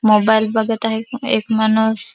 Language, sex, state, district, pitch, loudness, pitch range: Marathi, female, Maharashtra, Dhule, 220 Hz, -17 LUFS, 220-225 Hz